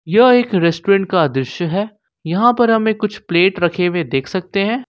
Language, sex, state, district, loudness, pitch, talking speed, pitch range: Hindi, male, Jharkhand, Ranchi, -16 LUFS, 190 Hz, 195 wpm, 170-220 Hz